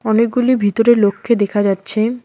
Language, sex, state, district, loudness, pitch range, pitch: Bengali, female, West Bengal, Cooch Behar, -15 LUFS, 205-235 Hz, 220 Hz